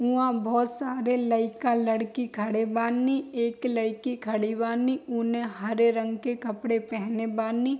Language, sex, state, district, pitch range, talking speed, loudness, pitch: Bhojpuri, female, Bihar, East Champaran, 225-245 Hz, 130 wpm, -27 LUFS, 230 Hz